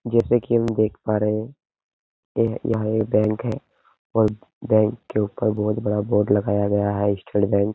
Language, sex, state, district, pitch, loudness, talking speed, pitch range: Hindi, male, Uttar Pradesh, Hamirpur, 110 Hz, -22 LUFS, 195 wpm, 105-115 Hz